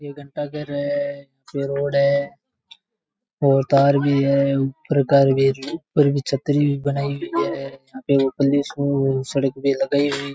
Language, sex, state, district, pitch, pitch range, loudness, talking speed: Rajasthani, male, Rajasthan, Churu, 140 Hz, 140-145 Hz, -20 LUFS, 150 wpm